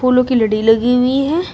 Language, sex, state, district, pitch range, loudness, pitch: Hindi, female, Uttar Pradesh, Shamli, 225-260 Hz, -14 LUFS, 250 Hz